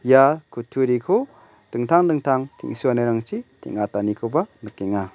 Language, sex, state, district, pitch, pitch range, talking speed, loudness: Garo, male, Meghalaya, West Garo Hills, 125 Hz, 110-150 Hz, 80 wpm, -22 LUFS